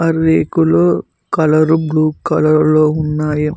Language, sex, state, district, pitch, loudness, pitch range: Telugu, male, Telangana, Mahabubabad, 155 Hz, -14 LUFS, 150-155 Hz